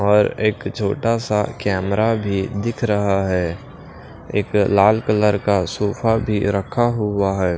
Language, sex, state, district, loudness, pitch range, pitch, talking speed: Hindi, male, Punjab, Pathankot, -19 LUFS, 100-110 Hz, 105 Hz, 140 wpm